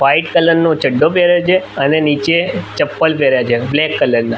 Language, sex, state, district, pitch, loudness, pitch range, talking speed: Gujarati, male, Gujarat, Gandhinagar, 155 Hz, -13 LUFS, 135-170 Hz, 190 wpm